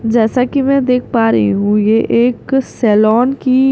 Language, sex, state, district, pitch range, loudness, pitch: Hindi, female, Bihar, Katihar, 220-260 Hz, -13 LUFS, 240 Hz